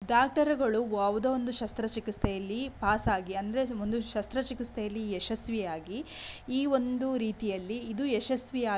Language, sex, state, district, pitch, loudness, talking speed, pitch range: Kannada, female, Karnataka, Shimoga, 225 Hz, -31 LUFS, 115 wpm, 210-260 Hz